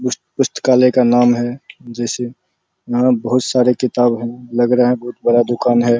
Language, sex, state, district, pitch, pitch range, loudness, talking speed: Hindi, male, Bihar, Araria, 120 Hz, 120-125 Hz, -15 LUFS, 190 wpm